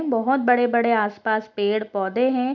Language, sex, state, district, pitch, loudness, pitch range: Hindi, female, Bihar, Sitamarhi, 230 Hz, -21 LUFS, 215-250 Hz